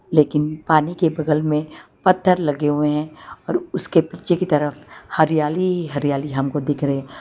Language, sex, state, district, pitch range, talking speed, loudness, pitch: Hindi, female, Gujarat, Valsad, 145-160 Hz, 165 wpm, -20 LUFS, 150 Hz